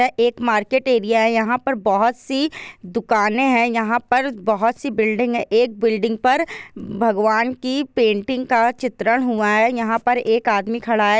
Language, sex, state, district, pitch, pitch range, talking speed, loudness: Hindi, female, Bihar, Jahanabad, 235 Hz, 225-250 Hz, 170 wpm, -19 LUFS